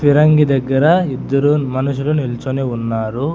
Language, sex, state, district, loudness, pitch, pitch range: Telugu, male, Telangana, Hyderabad, -16 LUFS, 140 Hz, 130-150 Hz